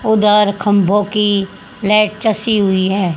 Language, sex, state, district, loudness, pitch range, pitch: Hindi, female, Haryana, Charkhi Dadri, -14 LUFS, 195-210 Hz, 205 Hz